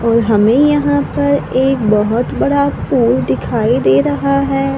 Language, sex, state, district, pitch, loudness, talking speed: Hindi, female, Maharashtra, Gondia, 155 Hz, -13 LUFS, 150 wpm